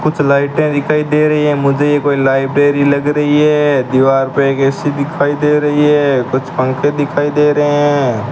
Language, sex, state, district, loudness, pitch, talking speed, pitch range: Hindi, male, Rajasthan, Bikaner, -13 LUFS, 145 Hz, 195 wpm, 140-150 Hz